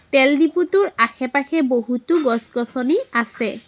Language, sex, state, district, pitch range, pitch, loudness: Assamese, female, Assam, Sonitpur, 240-325 Hz, 265 Hz, -18 LUFS